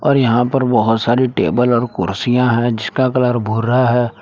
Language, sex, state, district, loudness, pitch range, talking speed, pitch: Hindi, male, Jharkhand, Palamu, -15 LUFS, 115-125 Hz, 185 wpm, 120 Hz